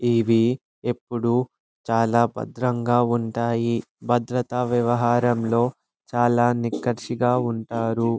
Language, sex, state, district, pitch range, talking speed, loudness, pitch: Telugu, male, Andhra Pradesh, Anantapur, 115-120 Hz, 75 wpm, -23 LUFS, 120 Hz